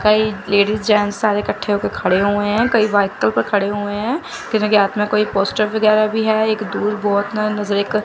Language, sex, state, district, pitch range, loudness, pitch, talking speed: Hindi, female, Chandigarh, Chandigarh, 205-215 Hz, -17 LUFS, 210 Hz, 210 wpm